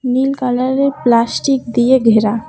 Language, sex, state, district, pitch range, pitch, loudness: Bengali, female, West Bengal, Cooch Behar, 235-265 Hz, 250 Hz, -14 LUFS